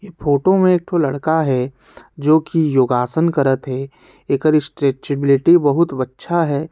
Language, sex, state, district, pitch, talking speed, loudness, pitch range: Chhattisgarhi, male, Chhattisgarh, Sarguja, 145 Hz, 150 wpm, -17 LUFS, 135-165 Hz